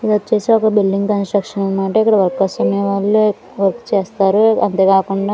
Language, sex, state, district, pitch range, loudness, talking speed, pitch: Telugu, female, Andhra Pradesh, Annamaya, 195-215 Hz, -15 LUFS, 135 wpm, 200 Hz